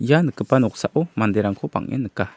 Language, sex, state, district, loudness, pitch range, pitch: Garo, male, Meghalaya, South Garo Hills, -21 LUFS, 100-135 Hz, 110 Hz